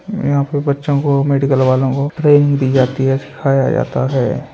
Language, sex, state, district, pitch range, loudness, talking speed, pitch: Hindi, male, Uttar Pradesh, Muzaffarnagar, 135-145 Hz, -15 LUFS, 185 wpm, 140 Hz